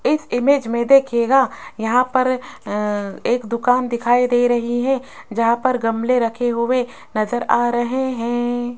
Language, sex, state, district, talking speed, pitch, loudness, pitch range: Hindi, female, Rajasthan, Jaipur, 150 wpm, 240 Hz, -19 LUFS, 235-255 Hz